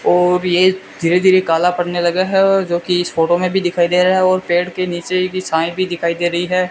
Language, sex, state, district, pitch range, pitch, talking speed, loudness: Hindi, male, Rajasthan, Bikaner, 175-185 Hz, 180 Hz, 270 wpm, -15 LUFS